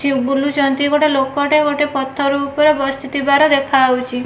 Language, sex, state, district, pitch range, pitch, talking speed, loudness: Odia, female, Odisha, Nuapada, 275-290 Hz, 280 Hz, 125 wpm, -15 LUFS